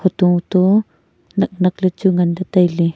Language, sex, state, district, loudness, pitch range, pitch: Wancho, female, Arunachal Pradesh, Longding, -16 LUFS, 175-185 Hz, 185 Hz